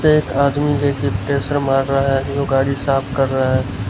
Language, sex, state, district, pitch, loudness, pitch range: Hindi, male, Gujarat, Valsad, 135 Hz, -18 LUFS, 135-140 Hz